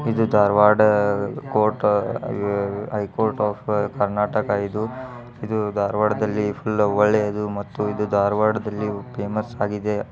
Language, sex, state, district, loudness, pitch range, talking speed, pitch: Kannada, male, Karnataka, Dharwad, -21 LUFS, 105-110 Hz, 95 wpm, 105 Hz